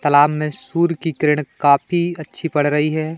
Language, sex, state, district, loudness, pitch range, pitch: Hindi, male, Madhya Pradesh, Katni, -18 LUFS, 145-165 Hz, 155 Hz